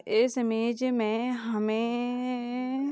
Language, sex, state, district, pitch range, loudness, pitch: Hindi, female, Chhattisgarh, Rajnandgaon, 230-250 Hz, -29 LUFS, 245 Hz